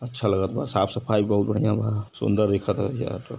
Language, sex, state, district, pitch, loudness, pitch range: Hindi, male, Uttar Pradesh, Varanasi, 105 Hz, -24 LUFS, 100-115 Hz